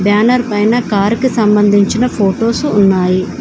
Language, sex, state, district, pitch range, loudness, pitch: Telugu, female, Telangana, Komaram Bheem, 200-235 Hz, -12 LUFS, 210 Hz